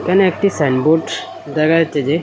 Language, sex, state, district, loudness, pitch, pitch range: Bengali, male, Assam, Hailakandi, -16 LUFS, 160 Hz, 150-180 Hz